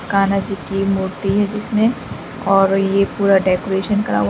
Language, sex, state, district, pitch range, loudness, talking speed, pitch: Hindi, female, Uttar Pradesh, Lalitpur, 195-205 Hz, -17 LUFS, 165 wpm, 195 Hz